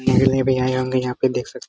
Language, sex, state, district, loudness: Hindi, male, Bihar, Araria, -19 LUFS